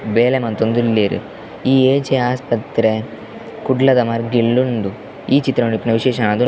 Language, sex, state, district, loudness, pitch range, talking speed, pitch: Tulu, male, Karnataka, Dakshina Kannada, -17 LUFS, 110-130 Hz, 130 wpm, 120 Hz